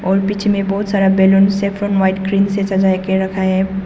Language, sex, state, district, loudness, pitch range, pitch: Hindi, female, Arunachal Pradesh, Papum Pare, -15 LUFS, 190-200 Hz, 195 Hz